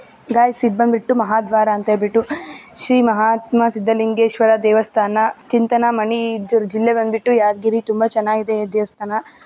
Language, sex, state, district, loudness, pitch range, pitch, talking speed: Kannada, female, Karnataka, Gulbarga, -17 LUFS, 215-235 Hz, 225 Hz, 120 wpm